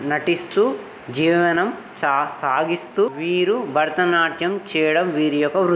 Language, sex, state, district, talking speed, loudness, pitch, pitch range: Telugu, male, Telangana, Nalgonda, 105 wpm, -20 LUFS, 165 Hz, 150-175 Hz